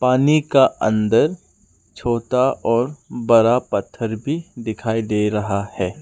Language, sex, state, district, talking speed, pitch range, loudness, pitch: Hindi, male, Arunachal Pradesh, Lower Dibang Valley, 120 wpm, 105-130 Hz, -19 LUFS, 115 Hz